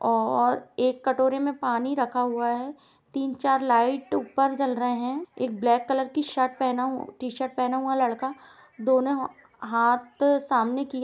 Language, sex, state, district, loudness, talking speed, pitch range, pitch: Hindi, female, Uttar Pradesh, Jalaun, -25 LUFS, 170 wpm, 245-270 Hz, 260 Hz